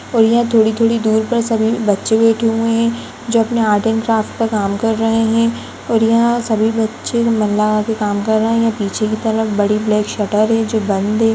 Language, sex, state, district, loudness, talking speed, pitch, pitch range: Hindi, female, Uttarakhand, Tehri Garhwal, -15 LUFS, 220 wpm, 225 Hz, 215-230 Hz